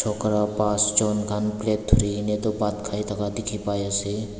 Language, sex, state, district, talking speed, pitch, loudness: Nagamese, male, Nagaland, Dimapur, 135 wpm, 105 Hz, -24 LUFS